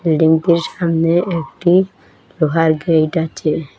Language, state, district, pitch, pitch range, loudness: Bengali, Assam, Hailakandi, 165 Hz, 160-170 Hz, -16 LUFS